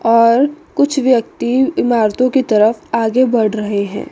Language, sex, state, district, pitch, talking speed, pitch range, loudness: Hindi, female, Chandigarh, Chandigarh, 235 Hz, 145 wpm, 220-265 Hz, -14 LUFS